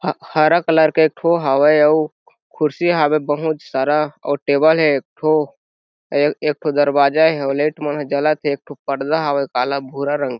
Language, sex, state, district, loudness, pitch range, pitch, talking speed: Chhattisgarhi, male, Chhattisgarh, Jashpur, -17 LUFS, 140-155 Hz, 150 Hz, 200 wpm